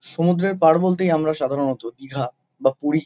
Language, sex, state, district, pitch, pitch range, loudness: Bengali, male, West Bengal, Kolkata, 155 Hz, 135-175 Hz, -21 LUFS